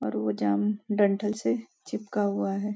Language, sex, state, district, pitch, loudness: Hindi, female, Maharashtra, Nagpur, 200 Hz, -28 LUFS